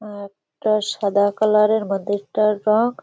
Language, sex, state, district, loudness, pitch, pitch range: Bengali, female, West Bengal, Kolkata, -19 LUFS, 210 Hz, 200-215 Hz